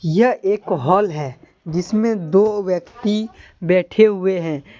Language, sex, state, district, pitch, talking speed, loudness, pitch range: Hindi, male, Jharkhand, Deoghar, 190 Hz, 125 wpm, -18 LUFS, 170-215 Hz